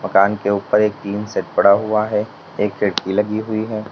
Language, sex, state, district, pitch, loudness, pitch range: Hindi, male, Uttar Pradesh, Lalitpur, 105 Hz, -18 LUFS, 100-110 Hz